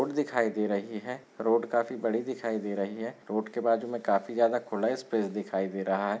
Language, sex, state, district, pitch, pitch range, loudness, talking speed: Hindi, male, Rajasthan, Nagaur, 115 Hz, 105-120 Hz, -30 LUFS, 220 wpm